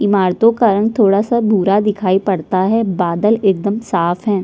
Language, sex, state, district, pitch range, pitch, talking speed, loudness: Hindi, female, Chhattisgarh, Sukma, 190-215 Hz, 200 Hz, 175 wpm, -15 LUFS